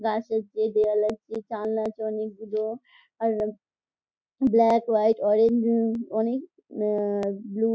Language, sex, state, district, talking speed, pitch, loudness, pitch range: Bengali, female, West Bengal, Jhargram, 130 wpm, 220 Hz, -25 LUFS, 215-230 Hz